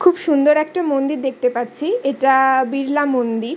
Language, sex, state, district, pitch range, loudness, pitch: Bengali, female, West Bengal, Kolkata, 260-300 Hz, -17 LUFS, 275 Hz